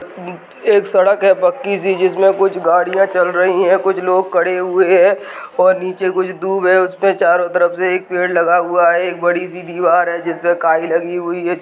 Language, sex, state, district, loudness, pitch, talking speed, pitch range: Hindi, female, Uttarakhand, Tehri Garhwal, -14 LUFS, 180 Hz, 215 wpm, 175-190 Hz